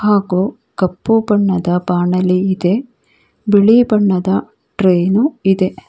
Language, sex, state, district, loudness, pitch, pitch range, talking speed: Kannada, female, Karnataka, Bangalore, -14 LUFS, 190 Hz, 185-210 Hz, 100 wpm